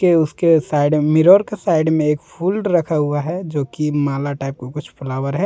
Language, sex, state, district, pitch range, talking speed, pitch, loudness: Hindi, male, Jharkhand, Deoghar, 145-175 Hz, 220 wpm, 155 Hz, -17 LUFS